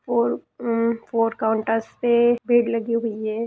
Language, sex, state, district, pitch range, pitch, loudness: Hindi, female, Bihar, Madhepura, 225-235 Hz, 230 Hz, -22 LUFS